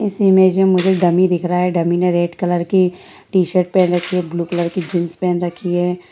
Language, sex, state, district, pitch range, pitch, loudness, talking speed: Hindi, male, Bihar, Gaya, 175-185 Hz, 180 Hz, -16 LUFS, 235 wpm